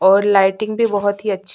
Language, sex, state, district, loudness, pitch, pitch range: Hindi, female, Chhattisgarh, Sukma, -16 LUFS, 205 Hz, 195-215 Hz